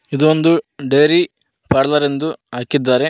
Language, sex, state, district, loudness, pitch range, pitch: Kannada, male, Karnataka, Koppal, -16 LUFS, 135-155 Hz, 145 Hz